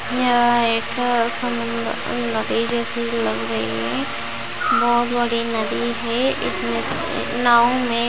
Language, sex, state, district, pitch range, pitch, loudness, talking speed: Hindi, female, Bihar, Saharsa, 170-240 Hz, 235 Hz, -20 LUFS, 135 wpm